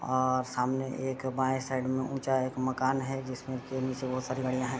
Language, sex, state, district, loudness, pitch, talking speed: Hindi, male, Bihar, Saharsa, -32 LUFS, 130 Hz, 235 wpm